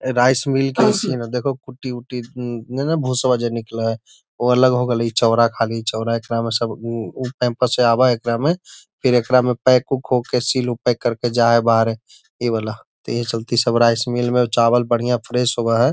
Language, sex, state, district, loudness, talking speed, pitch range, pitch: Magahi, male, Bihar, Gaya, -19 LUFS, 190 wpm, 115-125 Hz, 120 Hz